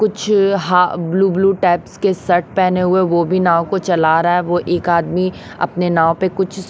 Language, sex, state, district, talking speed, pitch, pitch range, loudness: Hindi, female, Haryana, Rohtak, 215 wpm, 180 Hz, 175-190 Hz, -15 LUFS